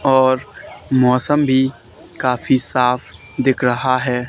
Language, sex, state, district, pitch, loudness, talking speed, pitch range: Hindi, male, Haryana, Charkhi Dadri, 130 Hz, -17 LUFS, 110 wpm, 125-130 Hz